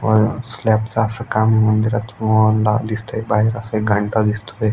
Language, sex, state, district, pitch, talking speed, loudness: Marathi, male, Maharashtra, Aurangabad, 110 Hz, 140 wpm, -18 LUFS